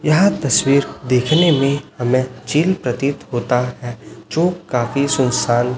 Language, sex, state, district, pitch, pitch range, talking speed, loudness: Hindi, male, Chhattisgarh, Raipur, 130 Hz, 125-150 Hz, 125 wpm, -17 LUFS